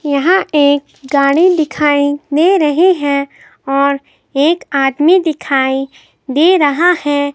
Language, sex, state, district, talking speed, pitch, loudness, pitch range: Hindi, female, Himachal Pradesh, Shimla, 115 wpm, 290 Hz, -13 LUFS, 280-325 Hz